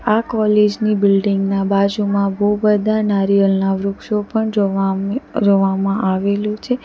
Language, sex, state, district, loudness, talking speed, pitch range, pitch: Gujarati, female, Gujarat, Valsad, -17 LUFS, 130 wpm, 195-210 Hz, 200 Hz